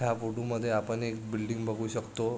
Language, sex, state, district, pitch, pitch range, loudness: Marathi, male, Maharashtra, Sindhudurg, 115 Hz, 110-115 Hz, -33 LUFS